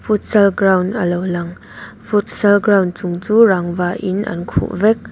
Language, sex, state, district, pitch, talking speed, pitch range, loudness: Mizo, female, Mizoram, Aizawl, 190 Hz, 150 wpm, 180-210 Hz, -16 LUFS